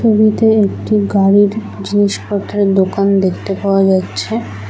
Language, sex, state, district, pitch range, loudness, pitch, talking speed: Bengali, female, West Bengal, Alipurduar, 195-210 Hz, -14 LUFS, 200 Hz, 115 wpm